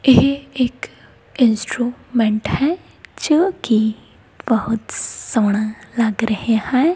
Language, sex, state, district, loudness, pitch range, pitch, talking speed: Punjabi, female, Punjab, Kapurthala, -19 LUFS, 220-265 Hz, 235 Hz, 95 wpm